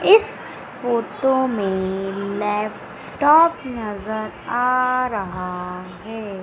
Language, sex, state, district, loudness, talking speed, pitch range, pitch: Hindi, female, Madhya Pradesh, Umaria, -21 LUFS, 75 wpm, 195-255 Hz, 215 Hz